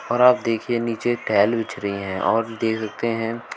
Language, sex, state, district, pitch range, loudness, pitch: Hindi, male, Uttar Pradesh, Shamli, 110-115 Hz, -22 LUFS, 115 Hz